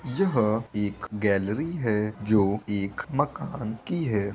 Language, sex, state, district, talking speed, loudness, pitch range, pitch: Hindi, male, Bihar, Saharsa, 125 wpm, -27 LUFS, 105-145 Hz, 110 Hz